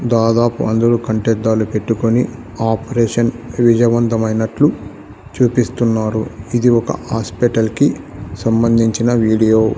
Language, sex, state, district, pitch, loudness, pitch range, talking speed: Telugu, male, Andhra Pradesh, Sri Satya Sai, 115 Hz, -15 LUFS, 110-120 Hz, 90 wpm